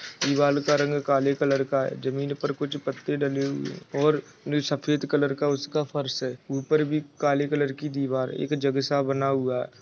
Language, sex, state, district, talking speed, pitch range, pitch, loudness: Hindi, male, Chhattisgarh, Raigarh, 210 wpm, 135-145 Hz, 140 Hz, -26 LUFS